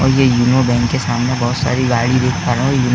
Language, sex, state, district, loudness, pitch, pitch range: Hindi, male, Uttar Pradesh, Etah, -15 LUFS, 125 Hz, 120-130 Hz